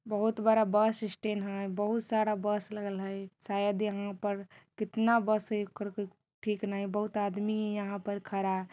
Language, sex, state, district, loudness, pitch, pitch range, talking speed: Bajjika, female, Bihar, Vaishali, -32 LUFS, 205 Hz, 200-215 Hz, 150 wpm